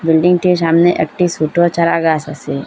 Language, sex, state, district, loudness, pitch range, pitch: Bengali, female, Assam, Hailakandi, -14 LUFS, 155-175 Hz, 165 Hz